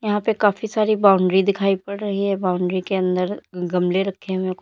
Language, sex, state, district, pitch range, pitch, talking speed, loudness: Hindi, female, Uttar Pradesh, Lalitpur, 185-205 Hz, 195 Hz, 220 wpm, -20 LUFS